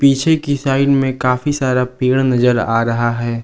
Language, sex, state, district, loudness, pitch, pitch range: Hindi, male, Jharkhand, Ranchi, -15 LUFS, 130 Hz, 120-140 Hz